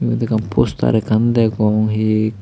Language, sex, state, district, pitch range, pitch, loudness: Chakma, male, Tripura, Dhalai, 105-110 Hz, 110 Hz, -16 LUFS